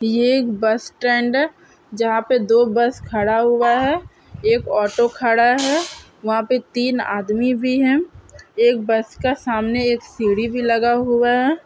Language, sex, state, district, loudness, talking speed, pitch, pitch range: Hindi, female, Andhra Pradesh, Krishna, -18 LUFS, 165 wpm, 240 Hz, 225-255 Hz